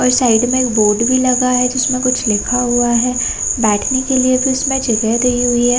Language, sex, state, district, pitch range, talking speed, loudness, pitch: Hindi, female, Chhattisgarh, Raigarh, 240-255 Hz, 240 wpm, -13 LUFS, 250 Hz